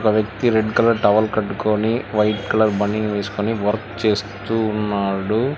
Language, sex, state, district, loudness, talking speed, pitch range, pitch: Telugu, male, Telangana, Hyderabad, -19 LUFS, 140 wpm, 105-110 Hz, 110 Hz